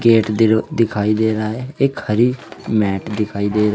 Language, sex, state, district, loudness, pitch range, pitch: Hindi, male, Uttar Pradesh, Saharanpur, -18 LUFS, 105-115 Hz, 110 Hz